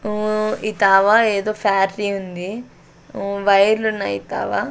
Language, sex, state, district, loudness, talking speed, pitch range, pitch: Telugu, female, Andhra Pradesh, Sri Satya Sai, -18 LUFS, 130 wpm, 195-215 Hz, 205 Hz